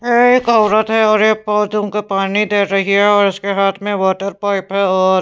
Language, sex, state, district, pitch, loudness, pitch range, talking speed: Hindi, female, Punjab, Pathankot, 205 Hz, -14 LUFS, 195-215 Hz, 240 wpm